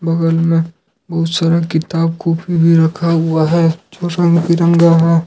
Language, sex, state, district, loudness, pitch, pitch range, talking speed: Hindi, male, Jharkhand, Ranchi, -14 LUFS, 165 Hz, 165-170 Hz, 135 wpm